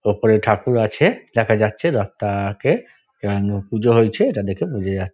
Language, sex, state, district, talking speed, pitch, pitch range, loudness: Bengali, male, West Bengal, Dakshin Dinajpur, 150 wpm, 105 Hz, 100-110 Hz, -19 LUFS